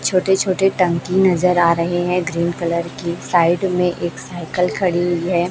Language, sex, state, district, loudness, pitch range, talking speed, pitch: Hindi, female, Chhattisgarh, Raipur, -18 LUFS, 170-180 Hz, 175 wpm, 175 Hz